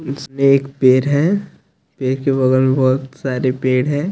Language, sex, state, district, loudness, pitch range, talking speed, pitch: Hindi, male, Chandigarh, Chandigarh, -16 LUFS, 130-140 Hz, 175 wpm, 135 Hz